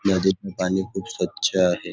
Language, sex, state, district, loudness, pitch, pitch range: Marathi, male, Maharashtra, Nagpur, -23 LUFS, 95 Hz, 90-95 Hz